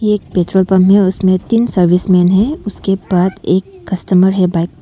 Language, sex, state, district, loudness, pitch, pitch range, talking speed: Hindi, female, Arunachal Pradesh, Longding, -13 LUFS, 190 Hz, 180-195 Hz, 160 wpm